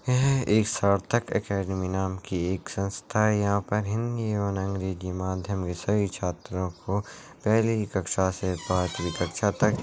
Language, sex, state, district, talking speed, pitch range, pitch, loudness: Hindi, male, Chhattisgarh, Rajnandgaon, 145 wpm, 95-105 Hz, 100 Hz, -27 LUFS